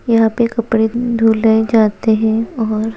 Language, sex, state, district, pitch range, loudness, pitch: Hindi, female, Chhattisgarh, Bilaspur, 220-230 Hz, -14 LUFS, 225 Hz